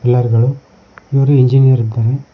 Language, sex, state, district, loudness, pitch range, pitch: Kannada, male, Karnataka, Koppal, -13 LUFS, 120-135 Hz, 130 Hz